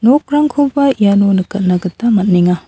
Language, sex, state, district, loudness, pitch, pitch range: Garo, female, Meghalaya, South Garo Hills, -13 LUFS, 200 Hz, 185-280 Hz